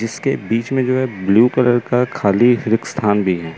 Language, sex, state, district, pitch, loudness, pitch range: Hindi, male, Chandigarh, Chandigarh, 115 Hz, -16 LUFS, 105-125 Hz